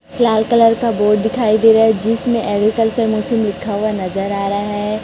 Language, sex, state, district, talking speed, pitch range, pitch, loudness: Hindi, female, Chhattisgarh, Raipur, 205 wpm, 205-230 Hz, 220 Hz, -15 LUFS